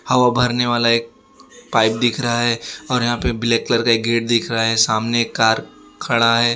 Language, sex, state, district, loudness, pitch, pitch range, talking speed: Hindi, male, Gujarat, Valsad, -17 LUFS, 115 Hz, 115-120 Hz, 200 wpm